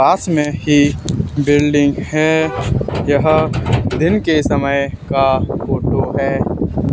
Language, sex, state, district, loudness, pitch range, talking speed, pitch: Hindi, male, Haryana, Charkhi Dadri, -15 LUFS, 140-155 Hz, 105 wpm, 145 Hz